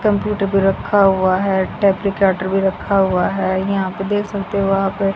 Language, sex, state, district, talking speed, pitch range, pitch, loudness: Hindi, female, Haryana, Jhajjar, 185 wpm, 190-200 Hz, 195 Hz, -17 LUFS